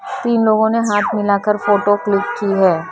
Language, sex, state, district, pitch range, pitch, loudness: Hindi, female, Maharashtra, Mumbai Suburban, 200-220 Hz, 205 Hz, -16 LUFS